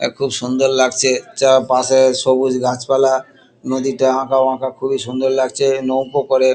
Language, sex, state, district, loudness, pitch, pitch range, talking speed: Bengali, male, West Bengal, Kolkata, -16 LUFS, 130 Hz, 130-135 Hz, 130 wpm